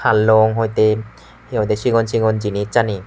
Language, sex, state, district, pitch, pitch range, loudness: Chakma, male, Tripura, West Tripura, 110 Hz, 105-115 Hz, -17 LUFS